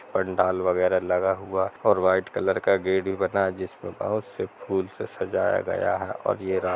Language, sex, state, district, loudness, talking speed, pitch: Hindi, male, Jharkhand, Jamtara, -25 LUFS, 205 wpm, 95 Hz